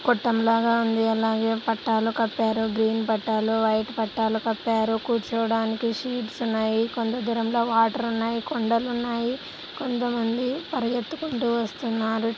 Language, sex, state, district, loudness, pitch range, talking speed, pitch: Telugu, female, Andhra Pradesh, Anantapur, -25 LUFS, 225-235 Hz, 105 wpm, 230 Hz